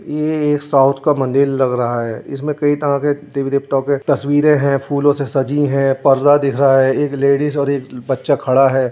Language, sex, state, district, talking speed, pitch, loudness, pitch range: Hindi, male, Uttar Pradesh, Jyotiba Phule Nagar, 200 wpm, 140 Hz, -15 LUFS, 135-145 Hz